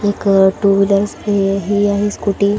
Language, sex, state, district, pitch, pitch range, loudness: Marathi, female, Maharashtra, Chandrapur, 200 Hz, 195-205 Hz, -15 LUFS